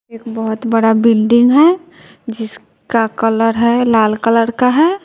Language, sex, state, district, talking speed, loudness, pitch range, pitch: Hindi, female, Bihar, West Champaran, 145 wpm, -13 LUFS, 225-245 Hz, 230 Hz